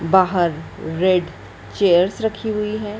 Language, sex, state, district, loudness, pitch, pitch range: Hindi, female, Madhya Pradesh, Dhar, -19 LUFS, 185 Hz, 175-210 Hz